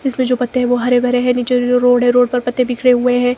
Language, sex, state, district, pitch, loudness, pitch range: Hindi, female, Himachal Pradesh, Shimla, 245 Hz, -14 LUFS, 245-250 Hz